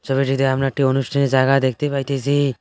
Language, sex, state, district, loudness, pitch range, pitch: Bengali, male, West Bengal, Cooch Behar, -19 LUFS, 135-140 Hz, 135 Hz